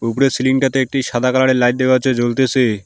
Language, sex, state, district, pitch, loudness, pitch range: Bengali, male, West Bengal, Alipurduar, 130 Hz, -15 LUFS, 125-130 Hz